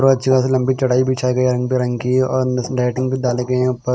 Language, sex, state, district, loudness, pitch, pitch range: Hindi, male, Punjab, Kapurthala, -17 LUFS, 130 Hz, 125-130 Hz